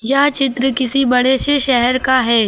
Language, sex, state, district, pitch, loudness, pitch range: Hindi, female, Uttar Pradesh, Lucknow, 260 Hz, -14 LUFS, 250-275 Hz